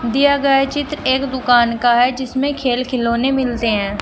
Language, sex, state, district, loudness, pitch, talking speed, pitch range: Hindi, female, Uttar Pradesh, Shamli, -16 LUFS, 260 Hz, 180 wpm, 240-270 Hz